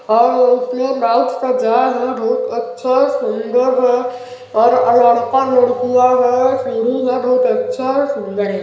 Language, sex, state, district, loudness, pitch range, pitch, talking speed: Hindi, male, Chhattisgarh, Balrampur, -15 LUFS, 240-255 Hz, 250 Hz, 105 wpm